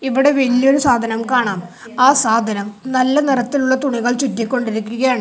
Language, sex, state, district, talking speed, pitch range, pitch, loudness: Malayalam, male, Kerala, Kasaragod, 125 wpm, 225-265 Hz, 250 Hz, -16 LUFS